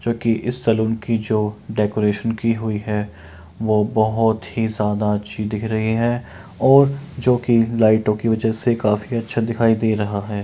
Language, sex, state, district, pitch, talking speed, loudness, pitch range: Maithili, male, Bihar, Kishanganj, 110 Hz, 170 wpm, -19 LUFS, 105-115 Hz